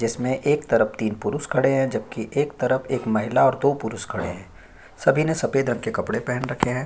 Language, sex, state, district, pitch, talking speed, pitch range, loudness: Hindi, male, Chhattisgarh, Korba, 125 Hz, 225 wpm, 110-140 Hz, -23 LUFS